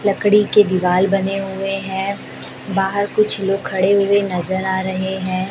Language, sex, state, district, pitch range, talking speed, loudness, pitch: Hindi, female, Chhattisgarh, Raipur, 190-200 Hz, 165 wpm, -18 LUFS, 195 Hz